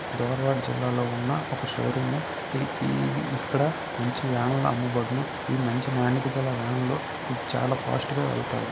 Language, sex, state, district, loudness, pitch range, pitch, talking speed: Telugu, male, Karnataka, Dharwad, -27 LUFS, 120-130 Hz, 125 Hz, 125 wpm